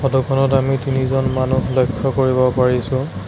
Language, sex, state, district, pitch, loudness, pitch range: Assamese, male, Assam, Sonitpur, 130 Hz, -17 LUFS, 130-135 Hz